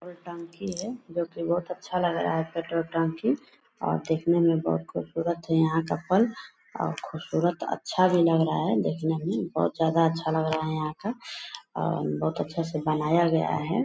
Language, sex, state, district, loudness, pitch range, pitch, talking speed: Hindi, female, Bihar, Purnia, -27 LUFS, 160-180 Hz, 165 Hz, 190 wpm